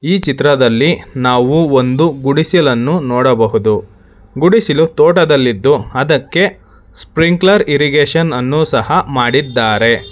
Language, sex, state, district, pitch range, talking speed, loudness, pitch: Kannada, male, Karnataka, Bangalore, 125-160 Hz, 85 wpm, -12 LUFS, 140 Hz